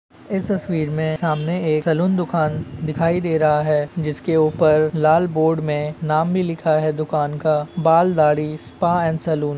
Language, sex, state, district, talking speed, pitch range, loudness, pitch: Hindi, male, Jharkhand, Jamtara, 165 wpm, 155-165 Hz, -19 LUFS, 155 Hz